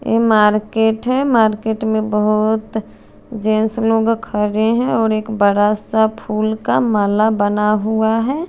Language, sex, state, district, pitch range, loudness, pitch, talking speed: Hindi, female, Chandigarh, Chandigarh, 215-225 Hz, -16 LUFS, 220 Hz, 140 wpm